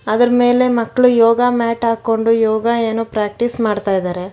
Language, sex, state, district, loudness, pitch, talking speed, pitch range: Kannada, female, Karnataka, Bangalore, -15 LUFS, 230 Hz, 150 wpm, 220-240 Hz